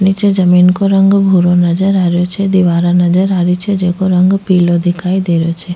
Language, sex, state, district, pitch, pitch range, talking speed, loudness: Rajasthani, female, Rajasthan, Nagaur, 180 Hz, 175-195 Hz, 220 wpm, -11 LUFS